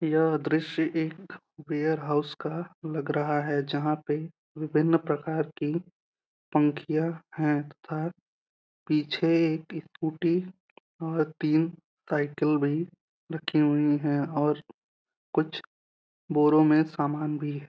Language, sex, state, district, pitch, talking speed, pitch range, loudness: Hindi, male, Uttar Pradesh, Deoria, 155 Hz, 110 wpm, 150-165 Hz, -28 LUFS